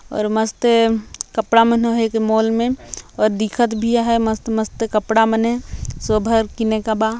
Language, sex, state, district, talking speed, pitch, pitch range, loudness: Hindi, male, Chhattisgarh, Jashpur, 150 wpm, 225 Hz, 220-230 Hz, -18 LUFS